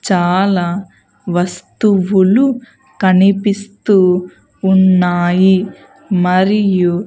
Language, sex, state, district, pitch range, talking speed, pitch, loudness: Telugu, female, Andhra Pradesh, Sri Satya Sai, 180-200 Hz, 50 wpm, 190 Hz, -13 LUFS